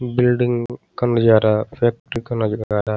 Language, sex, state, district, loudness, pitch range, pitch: Hindi, male, Uttar Pradesh, Gorakhpur, -19 LUFS, 110-120 Hz, 120 Hz